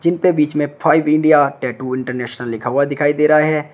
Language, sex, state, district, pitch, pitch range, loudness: Hindi, male, Uttar Pradesh, Shamli, 145 Hz, 130-155 Hz, -16 LUFS